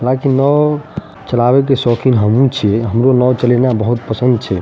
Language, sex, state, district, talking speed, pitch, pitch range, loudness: Maithili, male, Bihar, Madhepura, 170 wpm, 125 Hz, 115-135 Hz, -13 LUFS